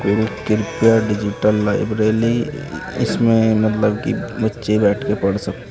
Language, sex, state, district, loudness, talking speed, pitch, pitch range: Hindi, male, Uttar Pradesh, Shamli, -18 LUFS, 125 wpm, 110 Hz, 105-115 Hz